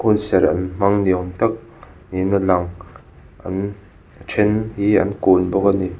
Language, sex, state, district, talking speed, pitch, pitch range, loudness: Mizo, male, Mizoram, Aizawl, 160 wpm, 95 Hz, 90-100 Hz, -19 LUFS